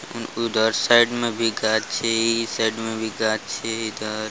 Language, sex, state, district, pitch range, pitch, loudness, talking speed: Hindi, male, Bihar, Araria, 110-115 Hz, 115 Hz, -22 LUFS, 165 wpm